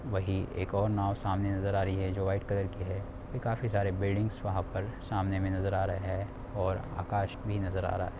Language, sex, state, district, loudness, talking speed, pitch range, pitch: Hindi, male, Bihar, Samastipur, -33 LUFS, 235 wpm, 95-100 Hz, 100 Hz